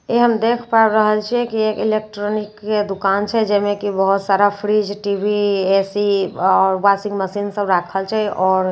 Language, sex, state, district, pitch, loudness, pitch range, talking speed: Maithili, female, Bihar, Katihar, 205 Hz, -17 LUFS, 195-215 Hz, 195 wpm